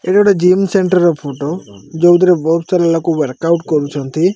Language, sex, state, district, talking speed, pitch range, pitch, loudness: Odia, male, Odisha, Malkangiri, 180 wpm, 150-180 Hz, 170 Hz, -13 LUFS